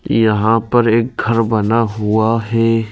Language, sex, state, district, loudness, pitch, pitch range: Hindi, male, Madhya Pradesh, Bhopal, -15 LUFS, 115 Hz, 110-115 Hz